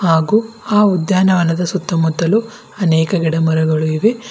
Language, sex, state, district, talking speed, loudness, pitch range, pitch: Kannada, female, Karnataka, Bidar, 110 wpm, -15 LUFS, 160-210 Hz, 180 Hz